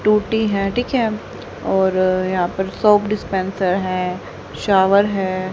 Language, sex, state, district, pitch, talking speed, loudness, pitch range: Hindi, female, Haryana, Charkhi Dadri, 190 Hz, 130 wpm, -18 LUFS, 185-210 Hz